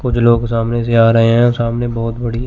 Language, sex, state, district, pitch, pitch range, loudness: Hindi, male, Chandigarh, Chandigarh, 120 Hz, 115-120 Hz, -14 LUFS